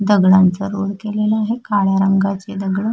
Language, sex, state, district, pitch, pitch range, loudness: Marathi, female, Maharashtra, Sindhudurg, 200 Hz, 195-210 Hz, -17 LUFS